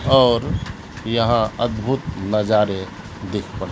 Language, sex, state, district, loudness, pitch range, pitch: Hindi, male, Bihar, Katihar, -20 LUFS, 100-120 Hz, 110 Hz